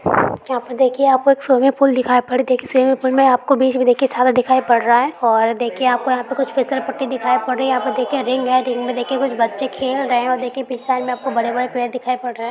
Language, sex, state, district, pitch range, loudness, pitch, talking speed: Hindi, female, Uttar Pradesh, Hamirpur, 245-265 Hz, -17 LUFS, 255 Hz, 275 wpm